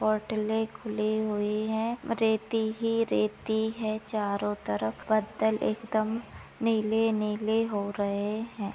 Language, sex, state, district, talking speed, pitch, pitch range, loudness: Hindi, female, Goa, North and South Goa, 115 wpm, 215 Hz, 210-220 Hz, -29 LUFS